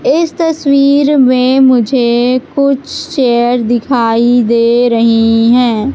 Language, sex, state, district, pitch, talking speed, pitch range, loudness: Hindi, female, Madhya Pradesh, Katni, 250 Hz, 100 wpm, 235-280 Hz, -10 LUFS